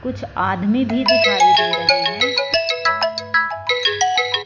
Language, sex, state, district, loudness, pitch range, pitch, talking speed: Hindi, female, Punjab, Fazilka, -16 LUFS, 165-270 Hz, 210 Hz, 95 wpm